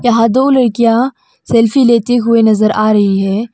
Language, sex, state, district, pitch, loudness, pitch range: Hindi, female, Arunachal Pradesh, Longding, 230 Hz, -11 LUFS, 215-245 Hz